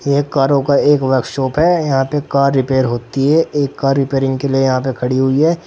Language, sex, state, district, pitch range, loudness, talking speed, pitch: Hindi, male, Uttar Pradesh, Saharanpur, 130-145 Hz, -15 LUFS, 235 wpm, 135 Hz